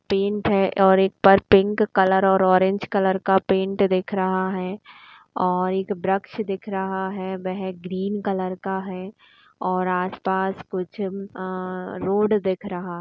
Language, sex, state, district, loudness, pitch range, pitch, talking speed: Hindi, female, Uttar Pradesh, Jalaun, -22 LUFS, 185-195 Hz, 190 Hz, 155 wpm